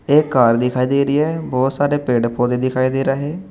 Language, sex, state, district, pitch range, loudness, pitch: Hindi, male, Uttar Pradesh, Saharanpur, 125-145 Hz, -17 LUFS, 135 Hz